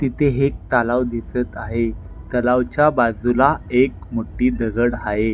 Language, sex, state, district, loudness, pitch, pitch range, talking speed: Marathi, male, Maharashtra, Nagpur, -19 LUFS, 120 Hz, 115-125 Hz, 125 wpm